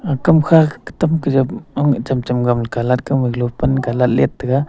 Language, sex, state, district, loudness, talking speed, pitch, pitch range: Wancho, male, Arunachal Pradesh, Longding, -16 LUFS, 140 wpm, 130 Hz, 125-145 Hz